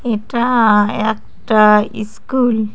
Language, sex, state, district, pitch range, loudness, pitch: Bengali, female, West Bengal, Cooch Behar, 215-235 Hz, -14 LUFS, 220 Hz